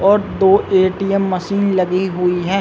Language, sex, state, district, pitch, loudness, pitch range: Hindi, male, Chhattisgarh, Bilaspur, 190 Hz, -16 LUFS, 185-195 Hz